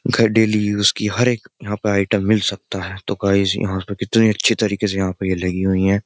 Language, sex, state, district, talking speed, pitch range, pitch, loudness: Hindi, male, Uttar Pradesh, Jyotiba Phule Nagar, 255 wpm, 95-110 Hz, 105 Hz, -18 LUFS